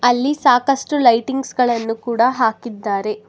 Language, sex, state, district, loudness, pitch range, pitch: Kannada, female, Karnataka, Bangalore, -17 LUFS, 225-265 Hz, 240 Hz